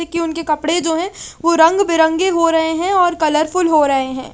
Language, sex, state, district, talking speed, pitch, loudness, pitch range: Hindi, female, Chandigarh, Chandigarh, 250 wpm, 330 Hz, -15 LUFS, 315-345 Hz